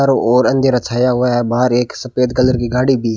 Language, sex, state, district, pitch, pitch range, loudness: Hindi, male, Rajasthan, Bikaner, 125 Hz, 120-130 Hz, -15 LUFS